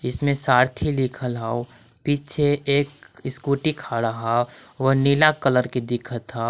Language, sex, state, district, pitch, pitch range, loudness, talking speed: Magahi, male, Jharkhand, Palamu, 130 Hz, 120-145 Hz, -22 LUFS, 140 wpm